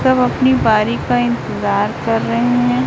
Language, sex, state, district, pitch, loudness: Hindi, female, Chhattisgarh, Raipur, 125 Hz, -15 LUFS